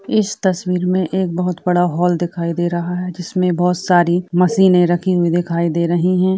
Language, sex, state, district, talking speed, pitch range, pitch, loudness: Hindi, female, Uttar Pradesh, Jalaun, 195 wpm, 175-185 Hz, 180 Hz, -17 LUFS